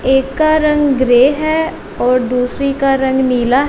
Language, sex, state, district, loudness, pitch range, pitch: Hindi, female, Punjab, Kapurthala, -13 LUFS, 255-295 Hz, 270 Hz